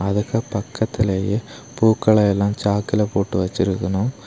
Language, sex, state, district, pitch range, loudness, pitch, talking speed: Tamil, male, Tamil Nadu, Kanyakumari, 100-110 Hz, -20 LUFS, 105 Hz, 100 wpm